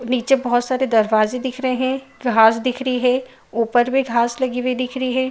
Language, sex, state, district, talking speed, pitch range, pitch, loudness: Hindi, female, Bihar, Saharsa, 215 wpm, 240-260 Hz, 255 Hz, -19 LUFS